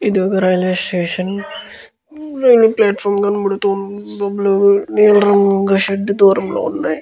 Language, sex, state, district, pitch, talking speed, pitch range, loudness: Telugu, male, Andhra Pradesh, Guntur, 200 Hz, 105 wpm, 195-205 Hz, -14 LUFS